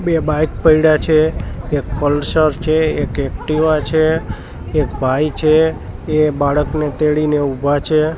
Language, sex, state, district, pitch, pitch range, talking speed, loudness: Gujarati, male, Gujarat, Gandhinagar, 155 Hz, 145-155 Hz, 130 wpm, -16 LUFS